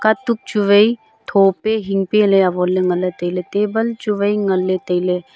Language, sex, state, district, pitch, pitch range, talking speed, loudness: Wancho, female, Arunachal Pradesh, Longding, 200 Hz, 185-215 Hz, 180 wpm, -17 LUFS